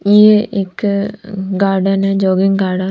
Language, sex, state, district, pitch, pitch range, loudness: Hindi, female, Bihar, Patna, 195 Hz, 190-205 Hz, -14 LUFS